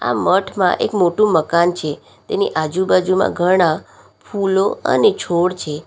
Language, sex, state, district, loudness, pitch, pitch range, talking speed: Gujarati, female, Gujarat, Valsad, -17 LUFS, 185 Hz, 170-195 Hz, 135 wpm